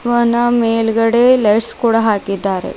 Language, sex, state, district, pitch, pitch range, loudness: Kannada, female, Karnataka, Bidar, 230 Hz, 215-240 Hz, -14 LUFS